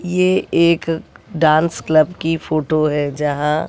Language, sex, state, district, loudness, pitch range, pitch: Hindi, female, Bihar, West Champaran, -17 LUFS, 150-170 Hz, 160 Hz